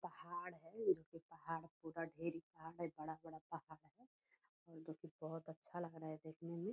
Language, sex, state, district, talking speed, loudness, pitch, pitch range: Hindi, female, Bihar, Purnia, 170 wpm, -49 LUFS, 165 Hz, 160-170 Hz